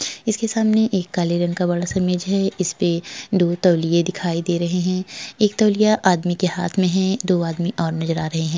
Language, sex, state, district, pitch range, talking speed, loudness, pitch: Hindi, female, Uttar Pradesh, Jalaun, 170-195 Hz, 215 wpm, -20 LUFS, 180 Hz